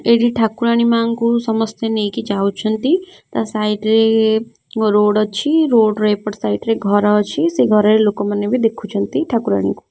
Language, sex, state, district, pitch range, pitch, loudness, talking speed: Odia, female, Odisha, Khordha, 210-230 Hz, 220 Hz, -16 LUFS, 150 wpm